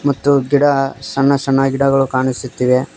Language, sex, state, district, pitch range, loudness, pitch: Kannada, male, Karnataka, Koppal, 130-140 Hz, -15 LUFS, 135 Hz